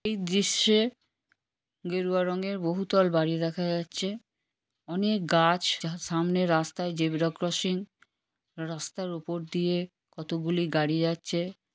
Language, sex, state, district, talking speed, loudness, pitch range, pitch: Bengali, female, West Bengal, Kolkata, 105 wpm, -28 LUFS, 165-185 Hz, 175 Hz